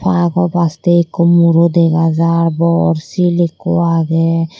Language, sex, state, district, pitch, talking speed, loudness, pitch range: Chakma, female, Tripura, Dhalai, 170 Hz, 145 wpm, -13 LUFS, 165-175 Hz